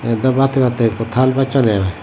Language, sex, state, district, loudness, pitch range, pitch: Chakma, male, Tripura, Dhalai, -15 LUFS, 115-130 Hz, 120 Hz